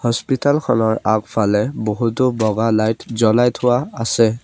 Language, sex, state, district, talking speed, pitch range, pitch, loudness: Assamese, male, Assam, Sonitpur, 120 wpm, 110-125 Hz, 115 Hz, -17 LUFS